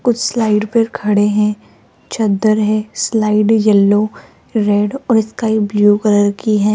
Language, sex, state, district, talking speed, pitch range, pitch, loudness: Hindi, female, Rajasthan, Jaipur, 140 wpm, 210-220 Hz, 215 Hz, -14 LUFS